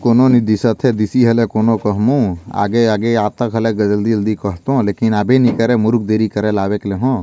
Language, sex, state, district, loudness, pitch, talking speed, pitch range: Chhattisgarhi, male, Chhattisgarh, Jashpur, -15 LUFS, 110 Hz, 205 wpm, 105-120 Hz